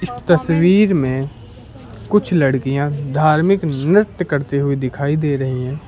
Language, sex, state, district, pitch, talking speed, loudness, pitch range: Hindi, male, Uttar Pradesh, Lucknow, 145 Hz, 120 wpm, -16 LUFS, 130-170 Hz